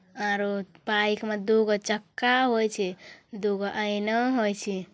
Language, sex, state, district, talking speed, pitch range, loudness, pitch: Angika, female, Bihar, Bhagalpur, 145 wpm, 200-220 Hz, -26 LUFS, 210 Hz